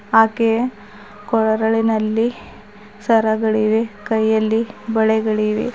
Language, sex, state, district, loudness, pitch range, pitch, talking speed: Kannada, female, Karnataka, Bidar, -18 LUFS, 215-225 Hz, 220 Hz, 50 wpm